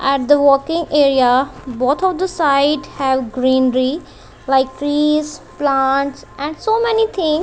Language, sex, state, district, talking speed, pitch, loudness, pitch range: English, female, Punjab, Kapurthala, 135 wpm, 280 Hz, -16 LUFS, 265-310 Hz